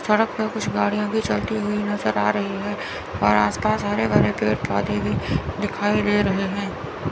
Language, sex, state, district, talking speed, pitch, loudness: Hindi, female, Chandigarh, Chandigarh, 195 wpm, 205 Hz, -22 LUFS